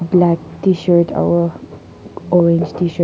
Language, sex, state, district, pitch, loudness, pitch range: Nagamese, female, Nagaland, Kohima, 170 Hz, -15 LUFS, 165-175 Hz